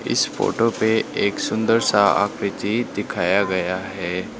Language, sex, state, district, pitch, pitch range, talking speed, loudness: Hindi, male, Sikkim, Gangtok, 110 Hz, 95-115 Hz, 135 wpm, -21 LUFS